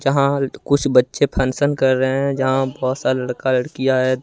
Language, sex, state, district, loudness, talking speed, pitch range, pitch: Hindi, male, Jharkhand, Ranchi, -18 LUFS, 185 wpm, 130-140 Hz, 130 Hz